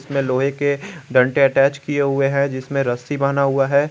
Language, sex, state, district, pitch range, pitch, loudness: Hindi, male, Jharkhand, Garhwa, 135-140 Hz, 140 Hz, -18 LUFS